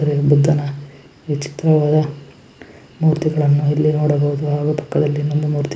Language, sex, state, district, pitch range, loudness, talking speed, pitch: Kannada, male, Karnataka, Chamarajanagar, 145-150 Hz, -17 LUFS, 85 wpm, 145 Hz